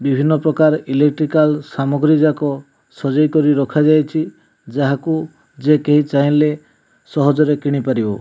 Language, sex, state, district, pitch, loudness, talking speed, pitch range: Odia, male, Odisha, Malkangiri, 150 Hz, -16 LUFS, 125 wpm, 140-155 Hz